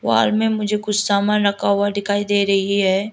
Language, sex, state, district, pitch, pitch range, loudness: Hindi, female, Arunachal Pradesh, Lower Dibang Valley, 200 Hz, 200-210 Hz, -18 LUFS